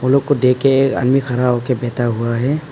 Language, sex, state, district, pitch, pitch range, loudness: Hindi, male, Arunachal Pradesh, Papum Pare, 125 Hz, 120-135 Hz, -16 LUFS